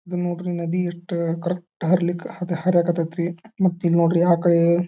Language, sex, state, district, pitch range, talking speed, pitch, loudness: Kannada, male, Karnataka, Dharwad, 170-180 Hz, 145 wpm, 175 Hz, -22 LUFS